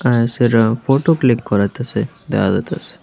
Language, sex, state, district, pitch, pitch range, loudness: Bengali, male, Tripura, West Tripura, 120 Hz, 115-135 Hz, -16 LUFS